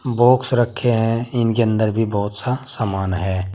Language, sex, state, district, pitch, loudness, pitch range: Hindi, male, Uttar Pradesh, Saharanpur, 115 Hz, -19 LUFS, 100-120 Hz